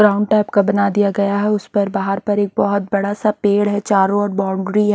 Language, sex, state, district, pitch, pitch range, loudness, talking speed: Hindi, female, Haryana, Charkhi Dadri, 205 Hz, 200-205 Hz, -17 LUFS, 255 wpm